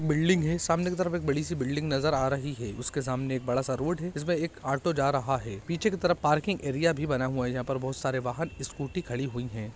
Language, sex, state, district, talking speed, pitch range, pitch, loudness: Hindi, male, Andhra Pradesh, Chittoor, 270 wpm, 130-170 Hz, 140 Hz, -29 LUFS